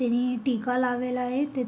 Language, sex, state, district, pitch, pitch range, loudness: Marathi, female, Maharashtra, Sindhudurg, 250 Hz, 245-255 Hz, -27 LUFS